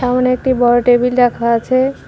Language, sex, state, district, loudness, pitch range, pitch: Bengali, female, West Bengal, Cooch Behar, -13 LUFS, 240-255 Hz, 250 Hz